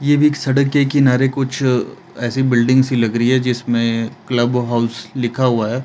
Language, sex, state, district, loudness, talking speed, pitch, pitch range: Hindi, male, Himachal Pradesh, Shimla, -16 LUFS, 185 wpm, 125 Hz, 120-135 Hz